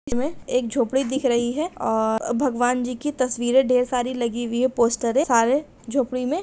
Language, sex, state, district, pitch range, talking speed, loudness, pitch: Hindi, female, Bihar, Saharsa, 240-265 Hz, 195 wpm, -22 LUFS, 250 Hz